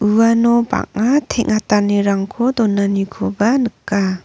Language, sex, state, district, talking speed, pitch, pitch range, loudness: Garo, female, Meghalaya, North Garo Hills, 70 wpm, 215 Hz, 200-235 Hz, -16 LUFS